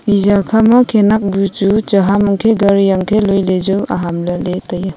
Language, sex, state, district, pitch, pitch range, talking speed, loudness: Wancho, female, Arunachal Pradesh, Longding, 200 Hz, 190-210 Hz, 215 wpm, -13 LUFS